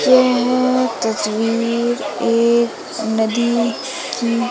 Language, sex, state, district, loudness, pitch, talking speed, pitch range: Hindi, female, Madhya Pradesh, Umaria, -17 LUFS, 235 Hz, 65 wpm, 230-250 Hz